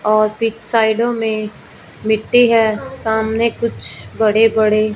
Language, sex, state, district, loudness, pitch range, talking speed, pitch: Hindi, female, Punjab, Fazilka, -16 LUFS, 215-230 Hz, 120 wpm, 220 Hz